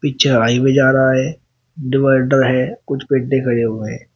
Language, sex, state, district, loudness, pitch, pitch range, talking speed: Hindi, male, Uttar Pradesh, Shamli, -15 LUFS, 130 Hz, 125-135 Hz, 175 wpm